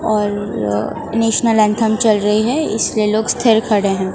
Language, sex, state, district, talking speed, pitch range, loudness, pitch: Hindi, female, Gujarat, Gandhinagar, 160 wpm, 205-225 Hz, -15 LUFS, 215 Hz